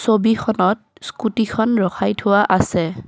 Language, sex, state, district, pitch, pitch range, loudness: Assamese, female, Assam, Kamrup Metropolitan, 220 Hz, 195-225 Hz, -18 LUFS